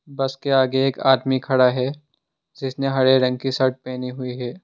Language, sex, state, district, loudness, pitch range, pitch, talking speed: Hindi, male, Assam, Sonitpur, -20 LUFS, 130-135 Hz, 130 Hz, 195 wpm